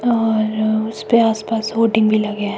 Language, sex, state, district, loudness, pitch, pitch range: Hindi, female, Himachal Pradesh, Shimla, -17 LUFS, 220 Hz, 215-225 Hz